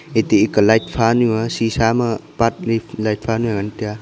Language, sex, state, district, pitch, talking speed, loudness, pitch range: Wancho, male, Arunachal Pradesh, Longding, 115 Hz, 225 wpm, -18 LUFS, 110-115 Hz